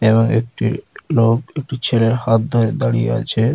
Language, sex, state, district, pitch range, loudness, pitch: Bengali, male, West Bengal, Dakshin Dinajpur, 110-120 Hz, -17 LUFS, 115 Hz